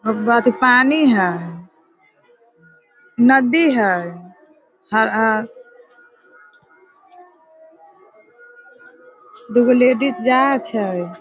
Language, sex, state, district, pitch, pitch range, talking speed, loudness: Hindi, female, Bihar, Sitamarhi, 255 Hz, 215-360 Hz, 60 wpm, -16 LUFS